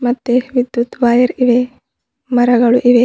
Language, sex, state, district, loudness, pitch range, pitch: Kannada, female, Karnataka, Bidar, -14 LUFS, 240-250 Hz, 245 Hz